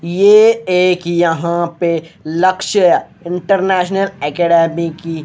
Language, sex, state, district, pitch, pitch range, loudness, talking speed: Hindi, male, Haryana, Rohtak, 175 Hz, 170-185 Hz, -14 LUFS, 90 wpm